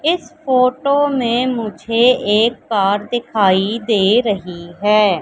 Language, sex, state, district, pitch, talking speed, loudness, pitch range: Hindi, female, Madhya Pradesh, Katni, 225 Hz, 115 wpm, -16 LUFS, 205-250 Hz